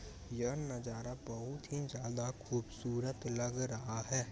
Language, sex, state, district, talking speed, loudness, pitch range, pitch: Hindi, male, Bihar, Muzaffarpur, 125 wpm, -41 LUFS, 115-130 Hz, 120 Hz